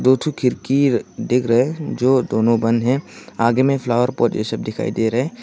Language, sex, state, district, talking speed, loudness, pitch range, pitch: Hindi, male, Arunachal Pradesh, Longding, 200 wpm, -18 LUFS, 115-130 Hz, 125 Hz